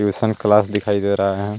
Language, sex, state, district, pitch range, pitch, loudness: Hindi, male, Jharkhand, Garhwa, 100-105 Hz, 105 Hz, -18 LUFS